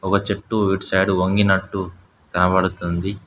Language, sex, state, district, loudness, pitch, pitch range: Telugu, male, Telangana, Hyderabad, -20 LUFS, 95 Hz, 90-100 Hz